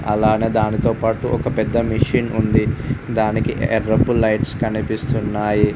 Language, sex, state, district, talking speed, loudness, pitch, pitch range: Telugu, male, Telangana, Mahabubabad, 105 wpm, -19 LUFS, 110 Hz, 110-120 Hz